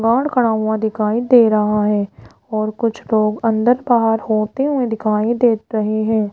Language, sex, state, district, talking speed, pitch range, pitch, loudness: Hindi, female, Rajasthan, Jaipur, 170 wpm, 215-235 Hz, 220 Hz, -17 LUFS